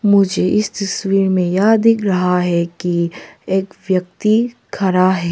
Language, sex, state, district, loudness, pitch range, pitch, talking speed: Hindi, female, Arunachal Pradesh, Papum Pare, -16 LUFS, 180-205 Hz, 190 Hz, 145 wpm